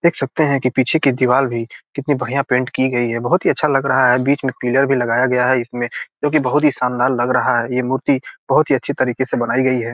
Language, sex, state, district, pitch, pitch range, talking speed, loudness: Hindi, male, Bihar, Gopalganj, 130 Hz, 125-140 Hz, 280 wpm, -17 LUFS